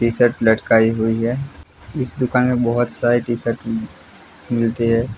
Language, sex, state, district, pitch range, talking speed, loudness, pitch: Hindi, male, Jharkhand, Jamtara, 115-120 Hz, 160 wpm, -19 LUFS, 120 Hz